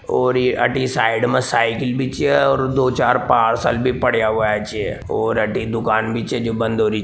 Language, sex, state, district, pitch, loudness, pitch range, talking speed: Marwari, male, Rajasthan, Nagaur, 115 Hz, -18 LUFS, 110-125 Hz, 215 wpm